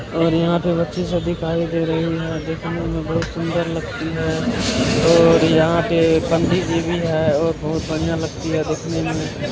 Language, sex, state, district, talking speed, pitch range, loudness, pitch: Hindi, male, Bihar, Araria, 200 wpm, 160-170 Hz, -19 LUFS, 165 Hz